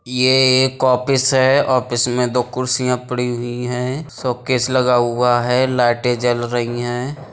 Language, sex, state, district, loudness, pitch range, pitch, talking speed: Hindi, male, Uttar Pradesh, Budaun, -17 LUFS, 120-130 Hz, 125 Hz, 165 wpm